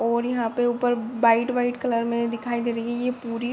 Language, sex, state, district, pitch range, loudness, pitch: Hindi, female, Uttar Pradesh, Deoria, 235-245 Hz, -24 LUFS, 235 Hz